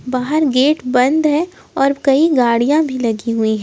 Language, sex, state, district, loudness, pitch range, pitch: Hindi, female, Jharkhand, Ranchi, -15 LUFS, 245-300 Hz, 265 Hz